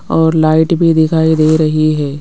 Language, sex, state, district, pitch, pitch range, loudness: Hindi, female, Rajasthan, Jaipur, 160 Hz, 155-160 Hz, -11 LUFS